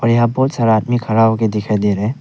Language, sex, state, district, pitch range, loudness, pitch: Hindi, male, Arunachal Pradesh, Papum Pare, 110-120 Hz, -15 LUFS, 115 Hz